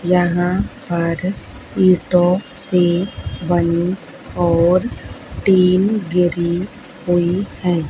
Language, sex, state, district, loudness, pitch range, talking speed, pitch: Hindi, female, Haryana, Charkhi Dadri, -17 LUFS, 175-185 Hz, 75 wpm, 180 Hz